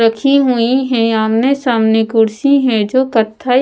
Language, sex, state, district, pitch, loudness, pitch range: Hindi, female, Bihar, Patna, 235 Hz, -13 LUFS, 225-265 Hz